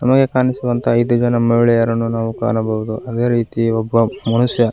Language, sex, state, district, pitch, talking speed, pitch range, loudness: Kannada, female, Karnataka, Koppal, 115 Hz, 150 wpm, 115-120 Hz, -16 LUFS